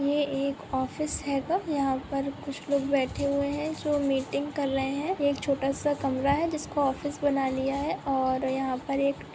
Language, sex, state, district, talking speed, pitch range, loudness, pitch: Hindi, female, Maharashtra, Pune, 185 wpm, 270-290 Hz, -28 LUFS, 280 Hz